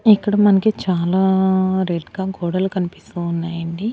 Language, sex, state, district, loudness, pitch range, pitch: Telugu, female, Andhra Pradesh, Annamaya, -19 LUFS, 175-195 Hz, 190 Hz